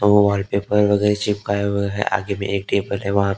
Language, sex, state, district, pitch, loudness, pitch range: Hindi, male, Maharashtra, Gondia, 100 Hz, -20 LUFS, 100-105 Hz